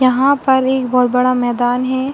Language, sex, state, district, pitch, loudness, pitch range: Hindi, female, Uttar Pradesh, Hamirpur, 255 Hz, -14 LUFS, 250-265 Hz